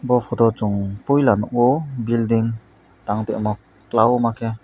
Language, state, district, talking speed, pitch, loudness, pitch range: Kokborok, Tripura, West Tripura, 140 wpm, 115 Hz, -20 LUFS, 105-120 Hz